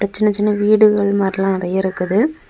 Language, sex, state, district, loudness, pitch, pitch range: Tamil, female, Tamil Nadu, Kanyakumari, -16 LUFS, 200 Hz, 190-210 Hz